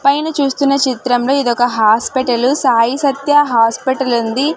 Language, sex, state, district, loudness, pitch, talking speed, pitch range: Telugu, female, Andhra Pradesh, Sri Satya Sai, -14 LUFS, 260 Hz, 130 wpm, 235-280 Hz